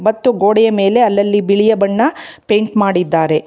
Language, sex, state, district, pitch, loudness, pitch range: Kannada, female, Karnataka, Bangalore, 205 Hz, -13 LUFS, 200-220 Hz